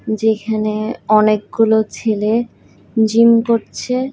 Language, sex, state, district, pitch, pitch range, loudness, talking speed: Bengali, female, Odisha, Khordha, 220 Hz, 215-230 Hz, -16 LUFS, 75 wpm